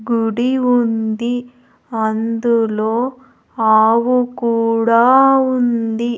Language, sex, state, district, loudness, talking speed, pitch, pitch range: Telugu, female, Andhra Pradesh, Sri Satya Sai, -15 LUFS, 60 wpm, 235 Hz, 225-245 Hz